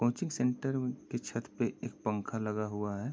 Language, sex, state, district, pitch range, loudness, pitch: Hindi, male, Uttar Pradesh, Jyotiba Phule Nagar, 105-125 Hz, -35 LUFS, 115 Hz